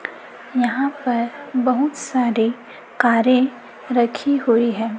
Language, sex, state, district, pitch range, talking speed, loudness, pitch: Hindi, female, Chhattisgarh, Raipur, 235-260 Hz, 95 wpm, -19 LUFS, 245 Hz